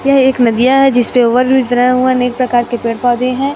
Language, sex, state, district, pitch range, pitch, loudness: Hindi, female, Chhattisgarh, Raipur, 240-260 Hz, 250 Hz, -12 LUFS